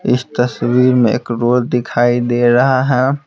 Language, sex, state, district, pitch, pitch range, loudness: Hindi, male, Bihar, Patna, 125 Hz, 120-130 Hz, -14 LUFS